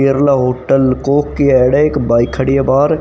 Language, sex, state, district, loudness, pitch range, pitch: Hindi, male, Haryana, Rohtak, -12 LUFS, 130-145 Hz, 135 Hz